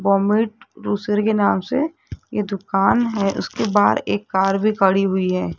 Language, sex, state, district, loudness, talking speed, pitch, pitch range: Hindi, female, Rajasthan, Jaipur, -19 LUFS, 170 wpm, 205 Hz, 195-215 Hz